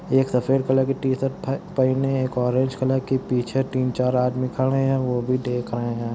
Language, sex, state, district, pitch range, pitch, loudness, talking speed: Hindi, male, Bihar, Gopalganj, 125-135 Hz, 130 Hz, -23 LUFS, 215 wpm